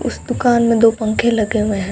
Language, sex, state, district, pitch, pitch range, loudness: Hindi, female, Rajasthan, Bikaner, 225 Hz, 215-235 Hz, -16 LUFS